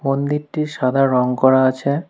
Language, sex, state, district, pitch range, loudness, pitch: Bengali, male, West Bengal, Alipurduar, 130-150 Hz, -17 LUFS, 135 Hz